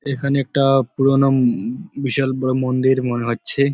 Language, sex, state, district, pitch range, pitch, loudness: Bengali, male, West Bengal, Purulia, 130-140 Hz, 135 Hz, -18 LUFS